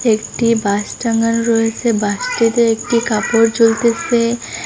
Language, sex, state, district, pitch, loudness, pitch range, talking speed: Bengali, female, Assam, Hailakandi, 230 Hz, -15 LUFS, 225-235 Hz, 115 wpm